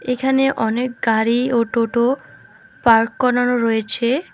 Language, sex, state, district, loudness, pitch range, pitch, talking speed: Bengali, female, West Bengal, Alipurduar, -18 LUFS, 230-255 Hz, 240 Hz, 110 wpm